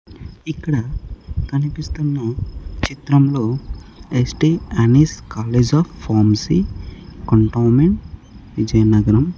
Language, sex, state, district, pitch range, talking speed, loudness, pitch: Telugu, male, Andhra Pradesh, Sri Satya Sai, 105-140 Hz, 65 wpm, -17 LUFS, 115 Hz